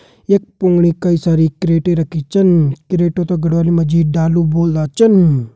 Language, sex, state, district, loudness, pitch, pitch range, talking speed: Hindi, male, Uttarakhand, Uttarkashi, -14 LUFS, 170 Hz, 160-175 Hz, 150 wpm